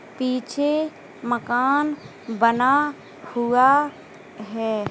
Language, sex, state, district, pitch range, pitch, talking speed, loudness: Hindi, female, Uttar Pradesh, Jalaun, 235-290 Hz, 255 Hz, 60 wpm, -21 LUFS